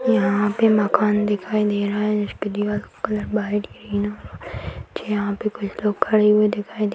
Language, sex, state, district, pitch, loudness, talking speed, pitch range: Hindi, female, Bihar, Bhagalpur, 210 Hz, -21 LUFS, 200 wpm, 205-210 Hz